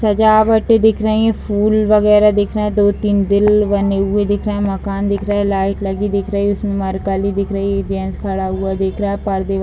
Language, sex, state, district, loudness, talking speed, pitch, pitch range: Hindi, female, Bihar, Jahanabad, -15 LUFS, 210 wpm, 200 Hz, 195-210 Hz